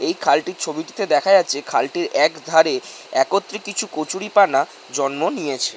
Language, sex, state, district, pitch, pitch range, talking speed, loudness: Bengali, male, West Bengal, North 24 Parganas, 165 Hz, 145-205 Hz, 135 wpm, -19 LUFS